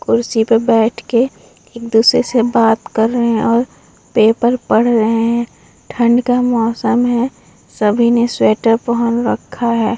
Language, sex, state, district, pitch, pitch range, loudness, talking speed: Hindi, female, Bihar, Vaishali, 235 Hz, 225-240 Hz, -14 LUFS, 155 wpm